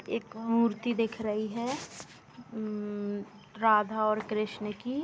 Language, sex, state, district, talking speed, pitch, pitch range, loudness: Hindi, female, Uttar Pradesh, Jalaun, 130 wpm, 215 Hz, 210-230 Hz, -31 LUFS